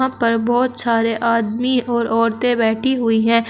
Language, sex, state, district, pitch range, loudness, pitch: Hindi, female, Uttar Pradesh, Shamli, 230-245 Hz, -17 LUFS, 230 Hz